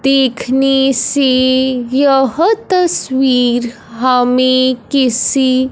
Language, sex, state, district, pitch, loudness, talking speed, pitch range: Hindi, male, Punjab, Fazilka, 260 Hz, -12 LUFS, 65 wpm, 255-270 Hz